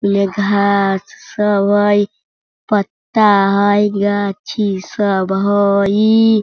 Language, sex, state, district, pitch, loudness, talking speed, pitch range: Hindi, female, Bihar, Sitamarhi, 205 Hz, -15 LUFS, 85 wpm, 200-210 Hz